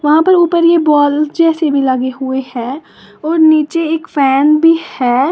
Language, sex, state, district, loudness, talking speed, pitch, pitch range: Hindi, female, Uttar Pradesh, Lalitpur, -12 LUFS, 180 wpm, 300 Hz, 270-325 Hz